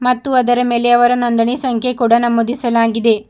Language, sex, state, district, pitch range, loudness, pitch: Kannada, female, Karnataka, Bidar, 230-245 Hz, -14 LUFS, 240 Hz